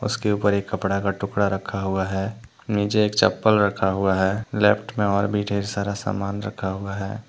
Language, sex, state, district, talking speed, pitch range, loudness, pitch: Hindi, male, Jharkhand, Deoghar, 215 wpm, 95-105 Hz, -23 LUFS, 100 Hz